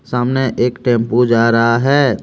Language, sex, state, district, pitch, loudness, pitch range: Hindi, male, Jharkhand, Deoghar, 120 Hz, -14 LUFS, 115-125 Hz